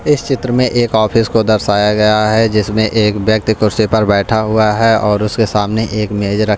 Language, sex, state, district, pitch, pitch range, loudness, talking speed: Hindi, male, Punjab, Pathankot, 110 Hz, 105-115 Hz, -13 LUFS, 210 wpm